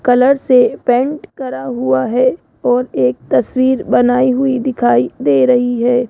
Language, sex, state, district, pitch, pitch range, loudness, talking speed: Hindi, female, Rajasthan, Jaipur, 245 Hz, 165-260 Hz, -14 LUFS, 150 wpm